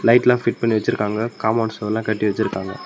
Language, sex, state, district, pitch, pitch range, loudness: Tamil, male, Tamil Nadu, Namakkal, 110 Hz, 105-115 Hz, -20 LUFS